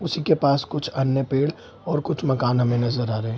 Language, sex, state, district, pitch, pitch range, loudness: Hindi, male, Bihar, Darbhanga, 135 Hz, 125-155 Hz, -23 LUFS